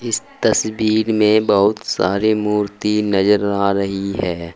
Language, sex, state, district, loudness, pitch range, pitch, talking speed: Hindi, male, Uttar Pradesh, Saharanpur, -17 LUFS, 100-110 Hz, 105 Hz, 130 wpm